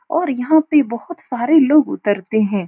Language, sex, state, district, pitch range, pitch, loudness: Hindi, female, Uttar Pradesh, Etah, 220-315 Hz, 280 Hz, -16 LUFS